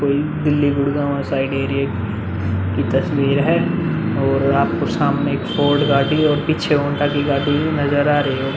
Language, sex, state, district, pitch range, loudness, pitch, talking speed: Hindi, male, Bihar, Vaishali, 135-145 Hz, -18 LUFS, 140 Hz, 170 wpm